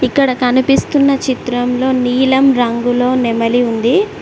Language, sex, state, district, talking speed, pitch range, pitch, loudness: Telugu, female, Telangana, Mahabubabad, 100 wpm, 245-265 Hz, 255 Hz, -13 LUFS